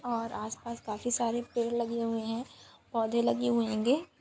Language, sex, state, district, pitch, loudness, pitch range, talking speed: Hindi, female, Andhra Pradesh, Guntur, 235 Hz, -32 LUFS, 230-240 Hz, 155 wpm